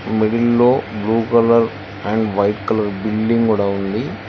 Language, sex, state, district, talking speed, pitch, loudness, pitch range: Telugu, male, Telangana, Hyderabad, 140 wpm, 110 Hz, -17 LUFS, 105-115 Hz